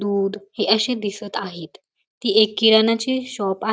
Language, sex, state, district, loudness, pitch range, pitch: Marathi, female, Maharashtra, Dhule, -20 LUFS, 200-225 Hz, 215 Hz